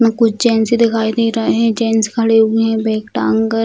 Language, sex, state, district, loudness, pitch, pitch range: Hindi, female, Bihar, Bhagalpur, -14 LUFS, 225 Hz, 220-230 Hz